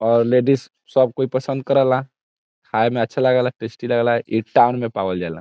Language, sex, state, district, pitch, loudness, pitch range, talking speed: Hindi, male, Bihar, Saran, 120 Hz, -19 LUFS, 115-130 Hz, 200 wpm